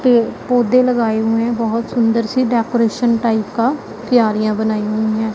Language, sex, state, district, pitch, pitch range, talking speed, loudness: Hindi, female, Punjab, Pathankot, 230 Hz, 220-240 Hz, 155 wpm, -16 LUFS